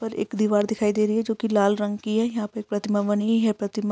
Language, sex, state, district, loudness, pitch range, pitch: Hindi, female, Uttar Pradesh, Etah, -24 LUFS, 205-220 Hz, 215 Hz